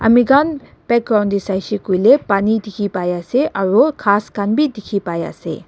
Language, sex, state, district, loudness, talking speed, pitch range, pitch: Nagamese, female, Nagaland, Dimapur, -16 LUFS, 125 wpm, 200-240 Hz, 210 Hz